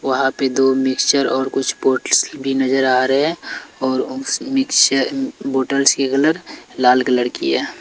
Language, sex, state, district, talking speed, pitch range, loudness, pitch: Hindi, male, Bihar, Patna, 170 wpm, 130-150 Hz, -17 LUFS, 135 Hz